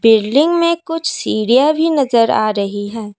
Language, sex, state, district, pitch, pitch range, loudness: Hindi, female, Assam, Kamrup Metropolitan, 235 Hz, 215-320 Hz, -15 LUFS